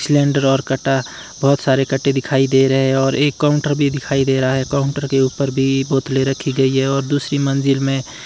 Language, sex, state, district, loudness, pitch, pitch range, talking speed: Hindi, male, Himachal Pradesh, Shimla, -17 LUFS, 135 Hz, 135-140 Hz, 225 wpm